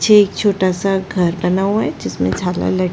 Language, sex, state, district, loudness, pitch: Hindi, female, Chhattisgarh, Bastar, -17 LUFS, 180 Hz